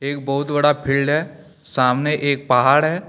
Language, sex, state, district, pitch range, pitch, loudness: Hindi, male, Jharkhand, Deoghar, 140-150 Hz, 145 Hz, -18 LUFS